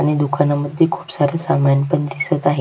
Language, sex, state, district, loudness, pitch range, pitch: Marathi, female, Maharashtra, Sindhudurg, -17 LUFS, 140-150 Hz, 145 Hz